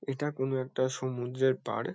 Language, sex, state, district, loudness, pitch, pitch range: Bengali, male, West Bengal, Kolkata, -32 LUFS, 130 Hz, 125-130 Hz